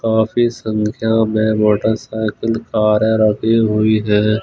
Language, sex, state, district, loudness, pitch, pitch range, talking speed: Hindi, male, Punjab, Fazilka, -16 LUFS, 110 Hz, 105-110 Hz, 110 wpm